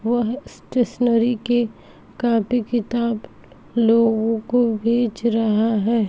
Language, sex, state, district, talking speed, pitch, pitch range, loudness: Hindi, female, Uttar Pradesh, Muzaffarnagar, 100 wpm, 235 Hz, 225-240 Hz, -20 LUFS